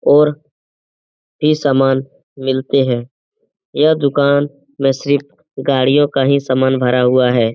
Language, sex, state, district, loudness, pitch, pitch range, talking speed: Hindi, male, Bihar, Jamui, -15 LUFS, 140 Hz, 130-145 Hz, 125 wpm